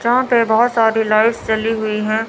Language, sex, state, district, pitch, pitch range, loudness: Hindi, male, Chandigarh, Chandigarh, 225 Hz, 220-230 Hz, -15 LUFS